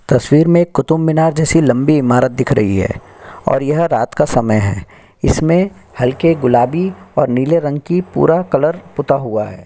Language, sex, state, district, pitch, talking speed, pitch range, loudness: Hindi, male, Chhattisgarh, Sukma, 140 Hz, 175 wpm, 125-160 Hz, -14 LUFS